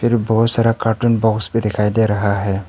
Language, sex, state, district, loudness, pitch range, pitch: Hindi, male, Arunachal Pradesh, Papum Pare, -16 LUFS, 105-115 Hz, 110 Hz